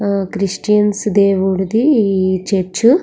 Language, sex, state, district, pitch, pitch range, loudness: Telugu, female, Andhra Pradesh, Srikakulam, 200 Hz, 190-210 Hz, -15 LUFS